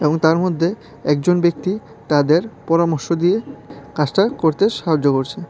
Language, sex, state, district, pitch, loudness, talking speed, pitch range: Bengali, male, Tripura, West Tripura, 170 Hz, -18 LUFS, 130 wpm, 150-185 Hz